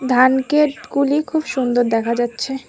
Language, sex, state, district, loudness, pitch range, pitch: Bengali, female, West Bengal, Alipurduar, -18 LUFS, 245-290 Hz, 265 Hz